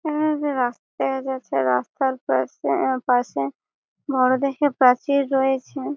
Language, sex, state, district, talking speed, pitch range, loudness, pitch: Bengali, female, West Bengal, Malda, 120 wpm, 250-280 Hz, -22 LUFS, 265 Hz